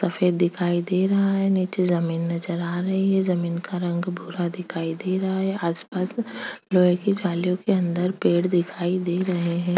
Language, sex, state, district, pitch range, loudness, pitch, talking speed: Hindi, female, Chhattisgarh, Kabirdham, 175-190 Hz, -23 LUFS, 180 Hz, 185 wpm